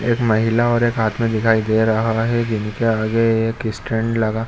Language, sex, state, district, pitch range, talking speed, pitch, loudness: Hindi, male, Jharkhand, Sahebganj, 110-115 Hz, 200 wpm, 115 Hz, -18 LUFS